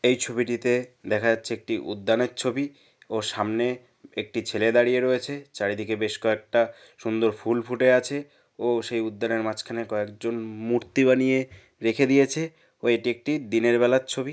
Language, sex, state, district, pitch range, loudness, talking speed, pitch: Bengali, male, West Bengal, North 24 Parganas, 110-125 Hz, -25 LUFS, 145 wpm, 120 Hz